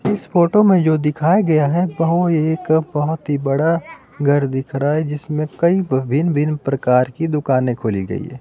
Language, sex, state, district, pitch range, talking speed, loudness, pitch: Hindi, male, Himachal Pradesh, Shimla, 140-165 Hz, 180 wpm, -17 LUFS, 150 Hz